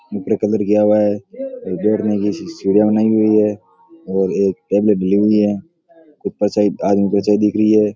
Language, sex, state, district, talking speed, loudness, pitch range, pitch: Rajasthani, male, Rajasthan, Nagaur, 160 wpm, -16 LUFS, 105-110 Hz, 105 Hz